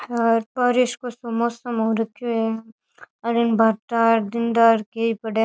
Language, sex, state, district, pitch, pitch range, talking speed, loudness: Rajasthani, female, Rajasthan, Churu, 230 Hz, 225-235 Hz, 145 wpm, -21 LUFS